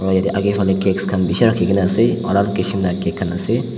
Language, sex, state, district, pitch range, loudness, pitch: Nagamese, male, Nagaland, Dimapur, 95-100 Hz, -17 LUFS, 95 Hz